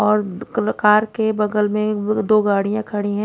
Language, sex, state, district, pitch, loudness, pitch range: Hindi, female, Odisha, Khordha, 210 Hz, -19 LUFS, 205-215 Hz